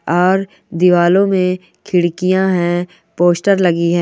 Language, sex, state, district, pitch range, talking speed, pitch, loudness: Hindi, male, West Bengal, Purulia, 175-185 Hz, 105 wpm, 180 Hz, -14 LUFS